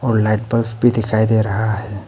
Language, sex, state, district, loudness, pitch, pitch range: Hindi, male, Arunachal Pradesh, Papum Pare, -17 LUFS, 110 Hz, 110-115 Hz